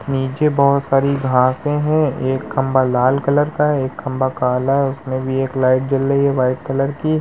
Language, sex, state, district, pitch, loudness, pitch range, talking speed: Hindi, male, Uttar Pradesh, Muzaffarnagar, 135 Hz, -17 LUFS, 130-140 Hz, 210 wpm